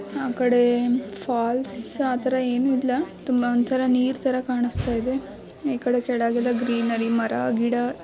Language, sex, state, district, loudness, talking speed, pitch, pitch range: Kannada, female, Karnataka, Shimoga, -23 LUFS, 135 wpm, 245 Hz, 240-260 Hz